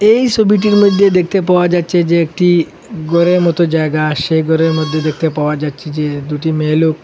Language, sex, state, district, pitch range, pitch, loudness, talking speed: Bengali, male, Assam, Hailakandi, 155-180 Hz, 165 Hz, -13 LUFS, 190 wpm